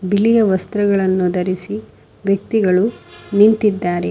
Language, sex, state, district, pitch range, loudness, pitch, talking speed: Kannada, female, Karnataka, Bangalore, 185-210 Hz, -16 LUFS, 195 Hz, 75 wpm